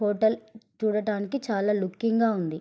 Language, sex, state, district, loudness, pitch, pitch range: Telugu, female, Andhra Pradesh, Srikakulam, -27 LUFS, 215 Hz, 200-225 Hz